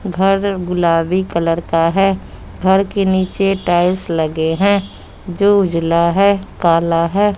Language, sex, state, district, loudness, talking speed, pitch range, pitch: Hindi, female, Bihar, West Champaran, -15 LUFS, 130 wpm, 170-195 Hz, 185 Hz